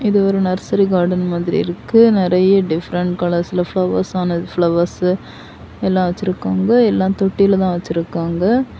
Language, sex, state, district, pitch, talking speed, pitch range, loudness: Tamil, female, Tamil Nadu, Kanyakumari, 180 Hz, 125 wpm, 175-195 Hz, -16 LUFS